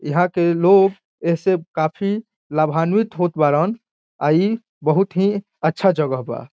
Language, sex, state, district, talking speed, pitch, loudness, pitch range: Bhojpuri, male, Bihar, Saran, 145 wpm, 175 Hz, -19 LUFS, 155-200 Hz